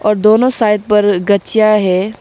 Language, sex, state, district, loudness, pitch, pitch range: Hindi, female, Arunachal Pradesh, Lower Dibang Valley, -12 LUFS, 210 Hz, 205-215 Hz